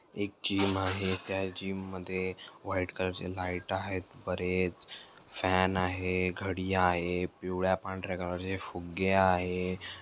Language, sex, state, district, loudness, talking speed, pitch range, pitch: Marathi, male, Maharashtra, Dhule, -32 LUFS, 130 wpm, 90-95 Hz, 95 Hz